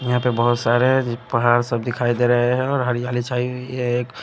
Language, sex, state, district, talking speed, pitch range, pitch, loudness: Hindi, male, Punjab, Kapurthala, 240 wpm, 120-125 Hz, 125 Hz, -20 LUFS